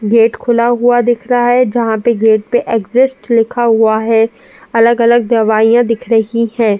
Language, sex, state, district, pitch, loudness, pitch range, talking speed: Hindi, female, Uttar Pradesh, Jalaun, 230 Hz, -12 LUFS, 225-240 Hz, 165 wpm